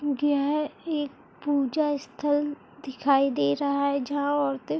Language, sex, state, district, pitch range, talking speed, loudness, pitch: Hindi, female, Chhattisgarh, Bilaspur, 275-290 Hz, 150 wpm, -26 LUFS, 285 Hz